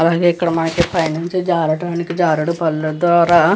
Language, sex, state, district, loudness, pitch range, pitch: Telugu, female, Andhra Pradesh, Krishna, -16 LUFS, 165-175 Hz, 170 Hz